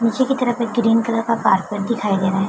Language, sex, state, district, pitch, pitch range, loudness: Hindi, female, Uttar Pradesh, Jalaun, 230 Hz, 205-235 Hz, -19 LUFS